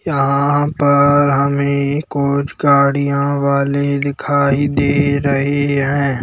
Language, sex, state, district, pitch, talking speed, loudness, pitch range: Hindi, male, Madhya Pradesh, Bhopal, 140 Hz, 95 wpm, -15 LUFS, 140-145 Hz